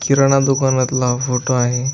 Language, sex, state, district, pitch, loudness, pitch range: Marathi, male, Maharashtra, Aurangabad, 130 Hz, -16 LUFS, 125-135 Hz